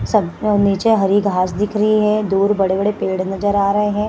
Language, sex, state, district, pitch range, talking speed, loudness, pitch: Hindi, female, Bihar, Gaya, 195-210 Hz, 250 wpm, -16 LUFS, 205 Hz